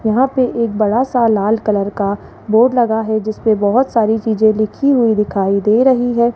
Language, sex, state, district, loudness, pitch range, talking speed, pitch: Hindi, male, Rajasthan, Jaipur, -14 LUFS, 215-240 Hz, 200 wpm, 220 Hz